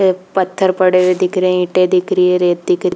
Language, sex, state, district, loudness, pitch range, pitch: Hindi, female, Jharkhand, Jamtara, -14 LUFS, 180-185 Hz, 185 Hz